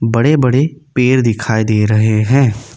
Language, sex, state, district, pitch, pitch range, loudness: Hindi, male, Assam, Kamrup Metropolitan, 120 Hz, 110-135 Hz, -13 LUFS